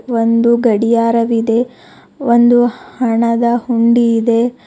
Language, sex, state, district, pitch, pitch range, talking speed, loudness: Kannada, female, Karnataka, Bidar, 235 Hz, 230-240 Hz, 75 wpm, -13 LUFS